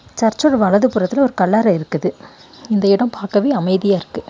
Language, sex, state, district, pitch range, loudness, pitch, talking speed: Tamil, female, Tamil Nadu, Nilgiris, 195-255 Hz, -16 LUFS, 210 Hz, 155 wpm